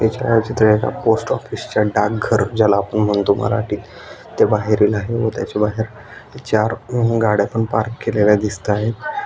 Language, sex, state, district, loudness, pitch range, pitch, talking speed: Marathi, male, Maharashtra, Aurangabad, -18 LUFS, 105-115 Hz, 110 Hz, 150 wpm